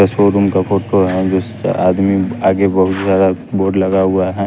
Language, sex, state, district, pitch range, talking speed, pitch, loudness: Hindi, male, Bihar, West Champaran, 95-100 Hz, 185 wpm, 95 Hz, -14 LUFS